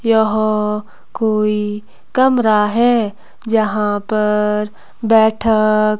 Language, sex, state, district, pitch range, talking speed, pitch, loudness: Hindi, female, Himachal Pradesh, Shimla, 210-220 Hz, 70 wpm, 215 Hz, -16 LUFS